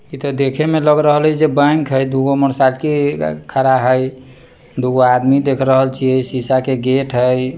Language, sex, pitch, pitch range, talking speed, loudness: Bajjika, male, 135 Hz, 130-145 Hz, 180 wpm, -15 LUFS